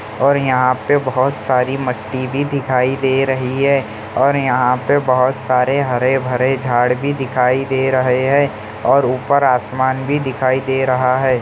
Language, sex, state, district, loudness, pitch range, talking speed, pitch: Hindi, male, Bihar, Jamui, -16 LUFS, 125-135 Hz, 160 wpm, 130 Hz